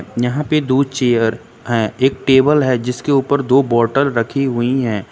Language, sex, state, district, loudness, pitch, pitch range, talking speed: Hindi, male, Uttar Pradesh, Lucknow, -16 LUFS, 130 Hz, 120-140 Hz, 175 wpm